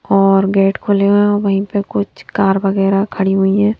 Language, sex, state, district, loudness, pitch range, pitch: Hindi, female, Haryana, Rohtak, -14 LUFS, 195-205 Hz, 195 Hz